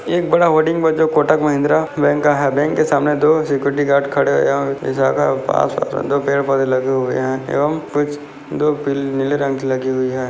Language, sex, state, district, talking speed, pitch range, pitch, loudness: Hindi, male, Maharashtra, Dhule, 175 wpm, 135-150 Hz, 145 Hz, -17 LUFS